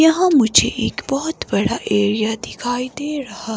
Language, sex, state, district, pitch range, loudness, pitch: Hindi, female, Himachal Pradesh, Shimla, 220-295 Hz, -18 LUFS, 255 Hz